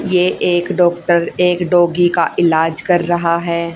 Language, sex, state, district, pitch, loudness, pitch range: Hindi, female, Haryana, Jhajjar, 175 Hz, -14 LUFS, 170-175 Hz